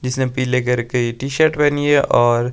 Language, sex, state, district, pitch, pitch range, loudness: Hindi, male, Himachal Pradesh, Shimla, 130 Hz, 125-145 Hz, -17 LUFS